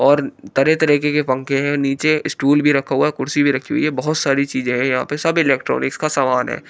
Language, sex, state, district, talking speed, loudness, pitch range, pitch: Hindi, male, Bihar, Katihar, 230 wpm, -17 LUFS, 135-150 Hz, 140 Hz